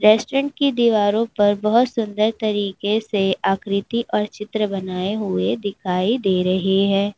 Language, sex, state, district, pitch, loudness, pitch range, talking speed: Hindi, female, Uttar Pradesh, Lalitpur, 210 Hz, -20 LUFS, 195-220 Hz, 140 wpm